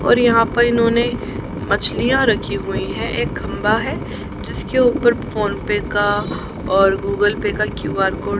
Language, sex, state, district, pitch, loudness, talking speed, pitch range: Hindi, female, Haryana, Jhajjar, 230 Hz, -18 LUFS, 165 wpm, 205-240 Hz